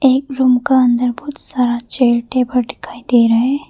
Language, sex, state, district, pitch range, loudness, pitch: Hindi, female, Arunachal Pradesh, Papum Pare, 240-265 Hz, -15 LUFS, 250 Hz